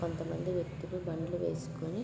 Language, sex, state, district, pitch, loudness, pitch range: Telugu, female, Andhra Pradesh, Guntur, 170 Hz, -37 LUFS, 165-175 Hz